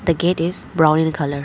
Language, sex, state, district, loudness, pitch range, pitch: English, female, Arunachal Pradesh, Lower Dibang Valley, -18 LUFS, 155-175 Hz, 165 Hz